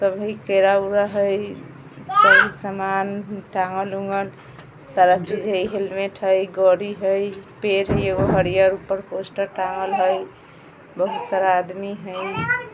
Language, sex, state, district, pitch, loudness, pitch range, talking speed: Bajjika, female, Bihar, Vaishali, 195 Hz, -20 LUFS, 190-200 Hz, 95 wpm